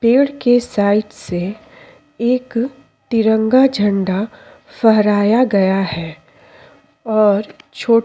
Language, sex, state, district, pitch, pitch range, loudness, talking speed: Hindi, female, Uttar Pradesh, Jyotiba Phule Nagar, 220 Hz, 205-245 Hz, -16 LUFS, 95 wpm